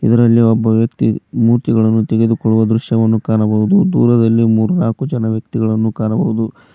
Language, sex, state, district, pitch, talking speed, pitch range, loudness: Kannada, male, Karnataka, Koppal, 115 Hz, 115 wpm, 110-115 Hz, -14 LUFS